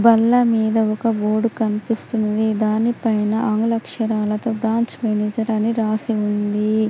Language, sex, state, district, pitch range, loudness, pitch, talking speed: Telugu, female, Telangana, Adilabad, 215-230 Hz, -19 LUFS, 220 Hz, 120 wpm